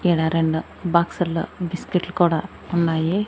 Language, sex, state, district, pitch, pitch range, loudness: Telugu, female, Andhra Pradesh, Annamaya, 170 Hz, 165-180 Hz, -22 LUFS